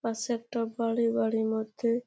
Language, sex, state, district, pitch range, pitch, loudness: Bengali, female, West Bengal, Jalpaiguri, 225-235 Hz, 230 Hz, -30 LUFS